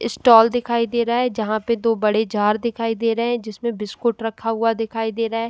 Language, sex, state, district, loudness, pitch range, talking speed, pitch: Hindi, female, Uttar Pradesh, Jyotiba Phule Nagar, -20 LUFS, 220-235 Hz, 240 wpm, 230 Hz